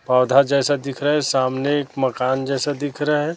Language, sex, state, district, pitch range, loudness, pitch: Hindi, male, Chhattisgarh, Raipur, 130-145 Hz, -20 LUFS, 140 Hz